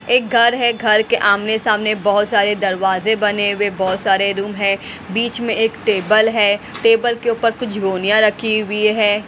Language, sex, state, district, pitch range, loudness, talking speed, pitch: Hindi, female, Haryana, Rohtak, 205-225 Hz, -16 LUFS, 180 wpm, 215 Hz